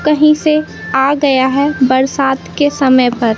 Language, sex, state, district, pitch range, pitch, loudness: Hindi, female, Madhya Pradesh, Katni, 260-295 Hz, 270 Hz, -12 LUFS